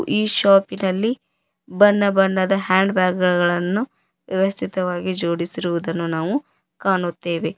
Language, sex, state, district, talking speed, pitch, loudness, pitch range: Kannada, female, Karnataka, Koppal, 80 wpm, 185 Hz, -19 LUFS, 175-195 Hz